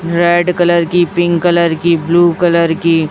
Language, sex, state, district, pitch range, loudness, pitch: Hindi, female, Chhattisgarh, Raipur, 170-175 Hz, -12 LUFS, 170 Hz